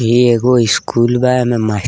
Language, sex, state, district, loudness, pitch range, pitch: Bhojpuri, male, Bihar, East Champaran, -13 LUFS, 115-125 Hz, 120 Hz